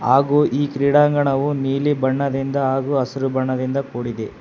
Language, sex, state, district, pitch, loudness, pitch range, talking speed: Kannada, male, Karnataka, Bangalore, 135 Hz, -19 LUFS, 130-140 Hz, 120 wpm